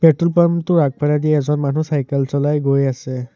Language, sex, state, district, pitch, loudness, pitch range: Assamese, male, Assam, Sonitpur, 150 Hz, -17 LUFS, 140-160 Hz